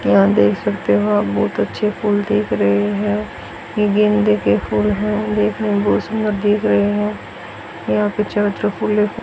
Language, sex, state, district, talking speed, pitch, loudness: Hindi, female, Haryana, Charkhi Dadri, 210 wpm, 190 Hz, -17 LUFS